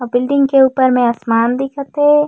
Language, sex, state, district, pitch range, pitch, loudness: Chhattisgarhi, female, Chhattisgarh, Raigarh, 245-280 Hz, 265 Hz, -14 LUFS